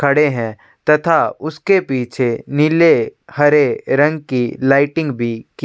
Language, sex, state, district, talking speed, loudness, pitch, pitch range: Hindi, male, Chhattisgarh, Sukma, 115 wpm, -16 LUFS, 145 Hz, 125-155 Hz